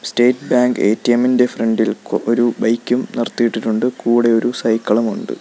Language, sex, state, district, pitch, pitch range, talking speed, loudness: Malayalam, male, Kerala, Kollam, 120 Hz, 115-125 Hz, 145 wpm, -16 LUFS